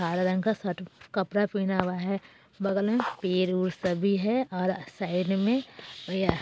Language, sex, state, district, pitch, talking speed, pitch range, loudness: Bajjika, female, Bihar, Vaishali, 190 Hz, 160 wpm, 185-200 Hz, -28 LUFS